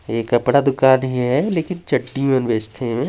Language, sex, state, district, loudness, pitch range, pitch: Chhattisgarhi, male, Chhattisgarh, Jashpur, -18 LUFS, 120-140 Hz, 130 Hz